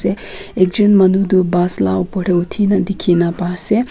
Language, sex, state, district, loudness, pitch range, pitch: Nagamese, female, Nagaland, Kohima, -14 LUFS, 175-200 Hz, 185 Hz